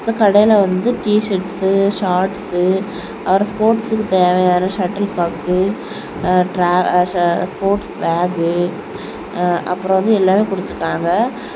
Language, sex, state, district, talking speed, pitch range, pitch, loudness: Tamil, female, Tamil Nadu, Kanyakumari, 85 wpm, 180-205 Hz, 190 Hz, -16 LUFS